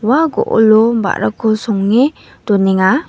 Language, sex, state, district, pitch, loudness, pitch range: Garo, female, Meghalaya, West Garo Hills, 220 Hz, -13 LUFS, 205-245 Hz